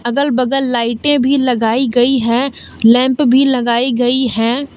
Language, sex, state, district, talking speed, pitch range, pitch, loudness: Hindi, female, Jharkhand, Deoghar, 150 wpm, 240-270 Hz, 250 Hz, -13 LUFS